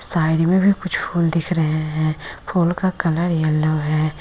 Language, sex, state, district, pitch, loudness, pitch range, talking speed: Hindi, female, Bihar, Lakhisarai, 165 Hz, -19 LUFS, 155-175 Hz, 185 wpm